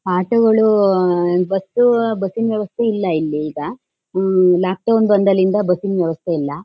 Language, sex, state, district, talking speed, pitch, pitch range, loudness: Kannada, female, Karnataka, Shimoga, 135 wpm, 190 Hz, 180-215 Hz, -16 LUFS